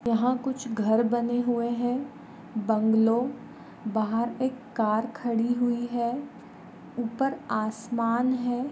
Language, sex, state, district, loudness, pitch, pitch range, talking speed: Hindi, female, Goa, North and South Goa, -27 LUFS, 240 Hz, 230-255 Hz, 110 wpm